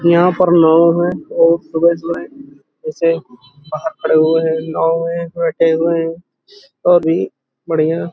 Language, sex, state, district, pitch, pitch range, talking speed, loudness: Hindi, male, Uttar Pradesh, Hamirpur, 165 Hz, 160-170 Hz, 135 wpm, -15 LUFS